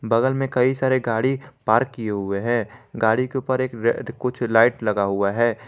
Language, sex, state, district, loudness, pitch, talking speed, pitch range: Hindi, male, Jharkhand, Garhwa, -21 LUFS, 120 Hz, 200 wpm, 110-130 Hz